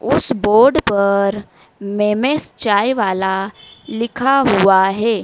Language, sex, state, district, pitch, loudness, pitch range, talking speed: Hindi, female, Madhya Pradesh, Dhar, 210 Hz, -15 LUFS, 200-255 Hz, 105 wpm